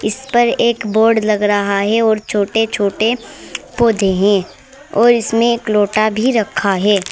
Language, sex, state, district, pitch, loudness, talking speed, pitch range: Hindi, female, Uttar Pradesh, Saharanpur, 220 Hz, -15 LUFS, 160 wpm, 205-235 Hz